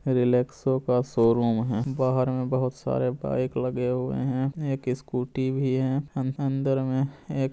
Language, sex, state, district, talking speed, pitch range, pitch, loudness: Hindi, male, Bihar, Supaul, 160 wpm, 125-135 Hz, 130 Hz, -26 LUFS